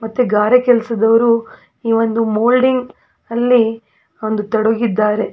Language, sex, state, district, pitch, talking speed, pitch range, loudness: Kannada, female, Karnataka, Belgaum, 230 Hz, 90 wpm, 220-240 Hz, -15 LUFS